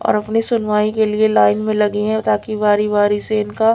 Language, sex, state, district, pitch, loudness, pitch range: Hindi, female, Bihar, Patna, 215 Hz, -16 LUFS, 210-220 Hz